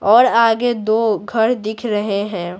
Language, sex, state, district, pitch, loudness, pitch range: Hindi, female, Bihar, Patna, 220 Hz, -17 LUFS, 205-230 Hz